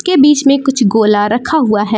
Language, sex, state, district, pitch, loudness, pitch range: Hindi, female, Jharkhand, Palamu, 240 Hz, -11 LUFS, 215-285 Hz